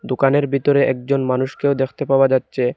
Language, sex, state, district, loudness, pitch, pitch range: Bengali, male, Assam, Hailakandi, -18 LUFS, 135 Hz, 130-140 Hz